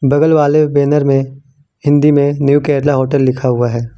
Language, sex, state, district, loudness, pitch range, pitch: Hindi, male, Jharkhand, Ranchi, -12 LUFS, 135-145 Hz, 140 Hz